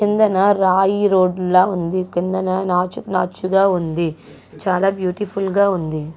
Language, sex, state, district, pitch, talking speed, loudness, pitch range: Telugu, female, Andhra Pradesh, Guntur, 185 Hz, 135 wpm, -18 LUFS, 180-195 Hz